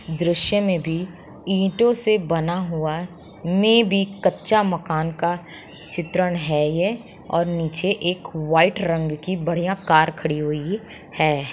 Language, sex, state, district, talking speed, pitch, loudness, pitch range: Hindi, female, Uttar Pradesh, Muzaffarnagar, 130 wpm, 170 Hz, -21 LUFS, 160-190 Hz